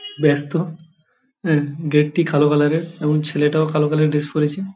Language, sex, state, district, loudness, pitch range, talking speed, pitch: Bengali, male, West Bengal, Paschim Medinipur, -19 LUFS, 150-165 Hz, 175 wpm, 155 Hz